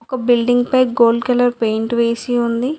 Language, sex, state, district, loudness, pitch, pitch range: Telugu, female, Telangana, Mahabubabad, -16 LUFS, 240 Hz, 235-245 Hz